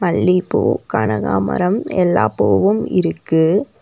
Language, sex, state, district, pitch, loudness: Tamil, female, Tamil Nadu, Nilgiris, 160 Hz, -16 LUFS